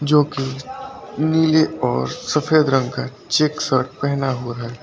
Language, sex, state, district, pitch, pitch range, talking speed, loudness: Hindi, male, Uttar Pradesh, Lucknow, 140 Hz, 130-155 Hz, 150 wpm, -19 LUFS